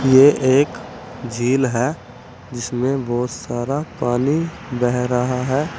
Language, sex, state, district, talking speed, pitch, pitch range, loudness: Hindi, male, Uttar Pradesh, Saharanpur, 115 wpm, 125 Hz, 125-135 Hz, -19 LUFS